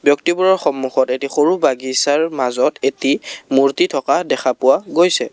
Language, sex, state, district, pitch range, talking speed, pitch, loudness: Assamese, male, Assam, Kamrup Metropolitan, 130-170 Hz, 135 wpm, 145 Hz, -16 LUFS